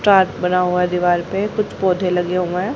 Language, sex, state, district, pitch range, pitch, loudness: Hindi, female, Haryana, Charkhi Dadri, 180-190 Hz, 180 Hz, -18 LUFS